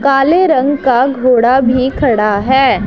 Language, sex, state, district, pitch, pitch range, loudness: Hindi, female, Punjab, Pathankot, 260 Hz, 245-275 Hz, -11 LUFS